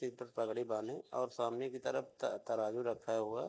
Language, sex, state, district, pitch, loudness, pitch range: Hindi, male, Uttar Pradesh, Hamirpur, 115 Hz, -40 LUFS, 110-125 Hz